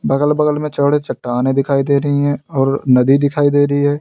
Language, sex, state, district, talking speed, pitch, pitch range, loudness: Hindi, male, Uttar Pradesh, Lalitpur, 225 wpm, 140 Hz, 135-145 Hz, -15 LUFS